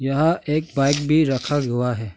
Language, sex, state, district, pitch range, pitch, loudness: Hindi, male, Arunachal Pradesh, Longding, 125-155 Hz, 140 Hz, -20 LUFS